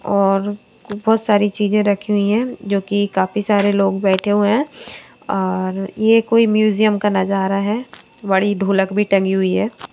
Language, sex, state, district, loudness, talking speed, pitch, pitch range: Hindi, female, Madhya Pradesh, Bhopal, -17 LUFS, 170 wpm, 205 Hz, 195-210 Hz